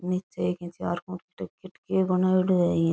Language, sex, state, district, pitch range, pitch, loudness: Rajasthani, female, Rajasthan, Nagaur, 175-185 Hz, 180 Hz, -26 LUFS